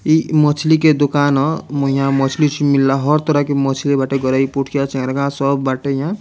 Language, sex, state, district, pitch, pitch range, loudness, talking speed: Bhojpuri, male, Bihar, Muzaffarpur, 140 Hz, 135-150 Hz, -16 LUFS, 185 wpm